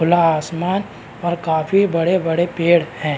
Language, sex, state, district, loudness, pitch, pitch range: Hindi, male, Chhattisgarh, Balrampur, -18 LUFS, 170 Hz, 160-175 Hz